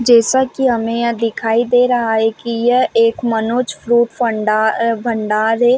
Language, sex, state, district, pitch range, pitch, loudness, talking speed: Hindi, female, Chhattisgarh, Bilaspur, 225-240 Hz, 230 Hz, -15 LUFS, 165 wpm